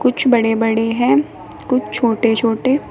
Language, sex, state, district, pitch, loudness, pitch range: Hindi, female, Uttar Pradesh, Shamli, 230 Hz, -16 LUFS, 225-255 Hz